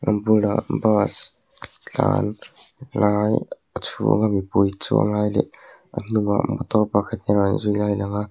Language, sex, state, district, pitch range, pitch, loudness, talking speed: Mizo, male, Mizoram, Aizawl, 100-110 Hz, 105 Hz, -21 LUFS, 165 wpm